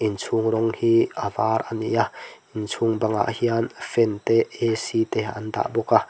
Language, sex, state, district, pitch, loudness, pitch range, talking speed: Mizo, male, Mizoram, Aizawl, 115 Hz, -23 LUFS, 110-115 Hz, 195 wpm